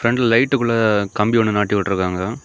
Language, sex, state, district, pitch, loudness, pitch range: Tamil, male, Tamil Nadu, Kanyakumari, 110 Hz, -17 LUFS, 100-115 Hz